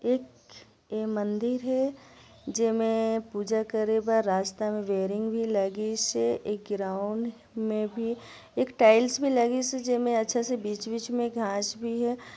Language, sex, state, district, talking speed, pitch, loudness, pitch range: Hindi, female, Chhattisgarh, Sarguja, 150 wpm, 225 Hz, -28 LUFS, 210-240 Hz